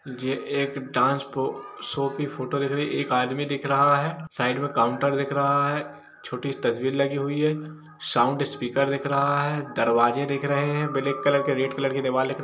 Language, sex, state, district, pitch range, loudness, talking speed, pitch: Hindi, male, Bihar, East Champaran, 135-140 Hz, -25 LUFS, 220 wpm, 140 Hz